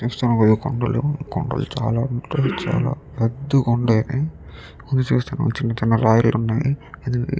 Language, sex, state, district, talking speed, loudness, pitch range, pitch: Telugu, male, Andhra Pradesh, Chittoor, 105 wpm, -21 LUFS, 115-140 Hz, 125 Hz